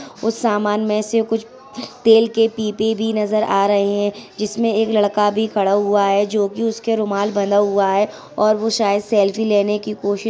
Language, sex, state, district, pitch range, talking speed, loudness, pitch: Hindi, female, Uttar Pradesh, Etah, 205-225 Hz, 205 wpm, -18 LUFS, 210 Hz